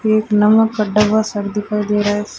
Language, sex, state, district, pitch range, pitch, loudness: Hindi, female, Rajasthan, Bikaner, 210-215 Hz, 210 Hz, -16 LUFS